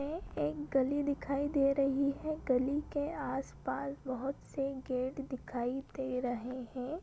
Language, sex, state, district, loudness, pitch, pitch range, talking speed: Hindi, female, Bihar, Gopalganj, -35 LUFS, 275 Hz, 255-285 Hz, 145 wpm